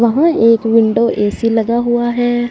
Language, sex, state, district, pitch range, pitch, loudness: Hindi, female, Punjab, Fazilka, 230-240 Hz, 235 Hz, -13 LUFS